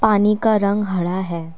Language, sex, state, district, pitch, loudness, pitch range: Hindi, female, Assam, Kamrup Metropolitan, 200 Hz, -18 LUFS, 175-210 Hz